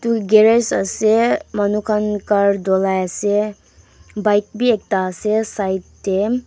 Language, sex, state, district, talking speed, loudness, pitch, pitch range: Nagamese, female, Nagaland, Dimapur, 130 wpm, -17 LUFS, 210 Hz, 200-220 Hz